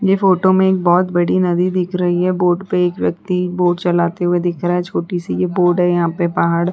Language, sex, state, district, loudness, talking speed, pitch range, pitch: Hindi, female, Uttar Pradesh, Hamirpur, -16 LUFS, 250 wpm, 175-185 Hz, 180 Hz